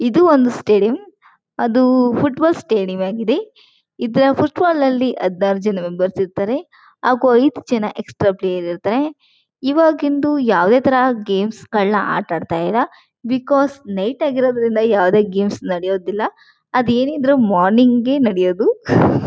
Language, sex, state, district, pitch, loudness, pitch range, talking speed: Kannada, female, Karnataka, Chamarajanagar, 245 Hz, -16 LUFS, 200-275 Hz, 135 wpm